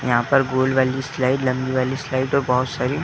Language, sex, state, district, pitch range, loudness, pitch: Hindi, male, Uttar Pradesh, Etah, 130-135 Hz, -20 LUFS, 130 Hz